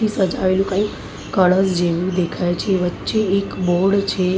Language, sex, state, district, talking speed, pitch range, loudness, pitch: Gujarati, female, Maharashtra, Mumbai Suburban, 135 wpm, 180-195 Hz, -19 LUFS, 185 Hz